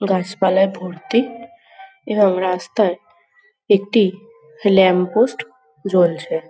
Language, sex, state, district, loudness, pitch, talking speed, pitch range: Bengali, female, West Bengal, Jhargram, -17 LUFS, 195 Hz, 85 wpm, 180-230 Hz